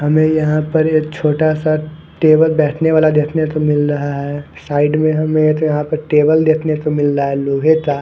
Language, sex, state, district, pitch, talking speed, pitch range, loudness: Hindi, male, Haryana, Charkhi Dadri, 155 Hz, 185 wpm, 150-155 Hz, -15 LUFS